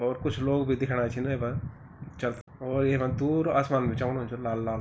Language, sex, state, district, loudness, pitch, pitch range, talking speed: Garhwali, male, Uttarakhand, Tehri Garhwal, -29 LUFS, 130 Hz, 120-135 Hz, 225 wpm